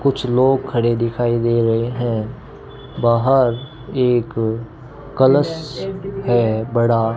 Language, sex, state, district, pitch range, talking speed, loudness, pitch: Hindi, male, Rajasthan, Bikaner, 115-135 Hz, 110 wpm, -18 LUFS, 120 Hz